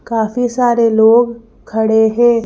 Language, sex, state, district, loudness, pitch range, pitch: Hindi, female, Madhya Pradesh, Bhopal, -13 LUFS, 220-240 Hz, 230 Hz